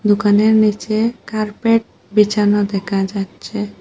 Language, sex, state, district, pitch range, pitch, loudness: Bengali, female, Assam, Hailakandi, 205-215 Hz, 210 Hz, -17 LUFS